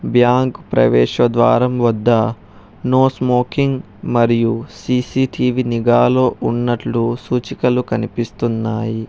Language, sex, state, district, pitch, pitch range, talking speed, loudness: Telugu, male, Telangana, Hyderabad, 120 Hz, 115-125 Hz, 80 wpm, -16 LUFS